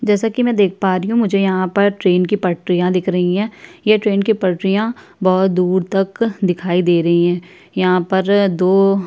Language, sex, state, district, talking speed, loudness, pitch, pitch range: Hindi, female, Chhattisgarh, Sukma, 205 wpm, -16 LUFS, 190 Hz, 180-205 Hz